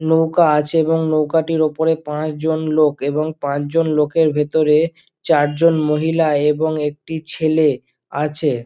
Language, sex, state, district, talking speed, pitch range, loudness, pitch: Bengali, male, West Bengal, Dakshin Dinajpur, 120 wpm, 150-160 Hz, -17 LUFS, 155 Hz